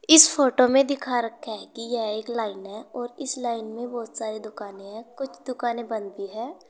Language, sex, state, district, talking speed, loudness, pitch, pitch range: Hindi, female, Uttar Pradesh, Saharanpur, 205 wpm, -24 LUFS, 235 Hz, 220-255 Hz